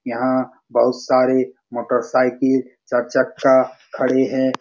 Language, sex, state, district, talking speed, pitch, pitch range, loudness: Hindi, male, Bihar, Supaul, 105 wpm, 130 Hz, 125-130 Hz, -19 LUFS